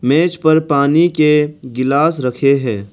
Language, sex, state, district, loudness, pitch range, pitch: Hindi, male, Arunachal Pradesh, Longding, -14 LUFS, 130-155 Hz, 145 Hz